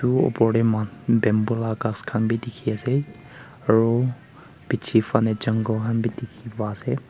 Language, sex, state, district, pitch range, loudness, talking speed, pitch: Nagamese, male, Nagaland, Kohima, 110-125 Hz, -23 LUFS, 175 wpm, 115 Hz